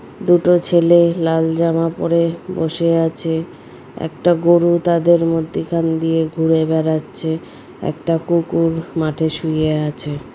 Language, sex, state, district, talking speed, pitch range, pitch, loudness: Bengali, female, West Bengal, Purulia, 130 wpm, 160-170 Hz, 165 Hz, -17 LUFS